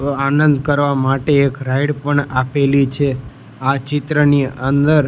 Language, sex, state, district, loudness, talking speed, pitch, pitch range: Gujarati, male, Gujarat, Gandhinagar, -16 LUFS, 140 wpm, 140 Hz, 135-145 Hz